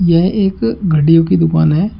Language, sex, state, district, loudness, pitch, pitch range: Hindi, male, Uttar Pradesh, Shamli, -12 LUFS, 175 Hz, 165-195 Hz